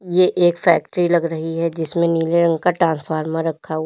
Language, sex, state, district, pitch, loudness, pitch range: Hindi, female, Uttar Pradesh, Lalitpur, 165 Hz, -18 LUFS, 160-175 Hz